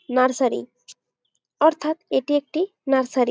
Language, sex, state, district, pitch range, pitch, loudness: Bengali, female, West Bengal, Jalpaiguri, 255-315 Hz, 290 Hz, -22 LUFS